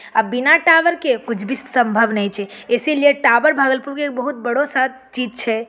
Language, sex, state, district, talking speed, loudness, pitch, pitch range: Angika, female, Bihar, Bhagalpur, 210 wpm, -17 LUFS, 260 Hz, 230-285 Hz